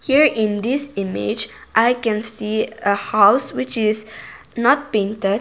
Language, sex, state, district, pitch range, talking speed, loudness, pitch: English, female, Nagaland, Kohima, 205-250 Hz, 145 wpm, -18 LUFS, 220 Hz